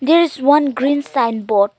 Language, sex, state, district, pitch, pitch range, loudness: English, female, Arunachal Pradesh, Lower Dibang Valley, 275 Hz, 225-290 Hz, -16 LUFS